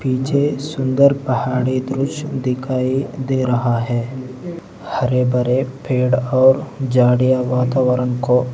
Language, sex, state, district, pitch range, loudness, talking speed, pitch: Hindi, male, Arunachal Pradesh, Lower Dibang Valley, 125-135 Hz, -18 LUFS, 105 wpm, 130 Hz